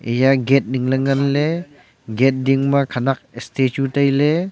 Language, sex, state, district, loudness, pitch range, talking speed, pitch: Wancho, male, Arunachal Pradesh, Longding, -18 LUFS, 130-140 Hz, 170 wpm, 135 Hz